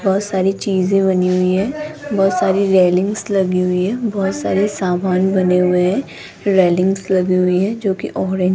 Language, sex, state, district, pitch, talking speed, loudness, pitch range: Hindi, female, Rajasthan, Jaipur, 190 Hz, 180 wpm, -16 LUFS, 185-195 Hz